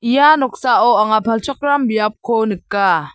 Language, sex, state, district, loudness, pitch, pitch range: Garo, female, Meghalaya, South Garo Hills, -15 LUFS, 225 Hz, 215-275 Hz